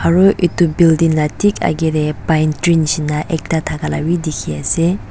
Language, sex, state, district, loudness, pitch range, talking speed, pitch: Nagamese, female, Nagaland, Dimapur, -15 LUFS, 155-170 Hz, 165 wpm, 160 Hz